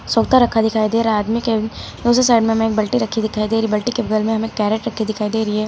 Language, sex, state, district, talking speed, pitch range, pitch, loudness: Hindi, female, Uttar Pradesh, Lucknow, 295 wpm, 215-230 Hz, 220 Hz, -17 LUFS